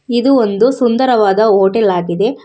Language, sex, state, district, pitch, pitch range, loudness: Kannada, female, Karnataka, Bangalore, 220 Hz, 195-245 Hz, -12 LUFS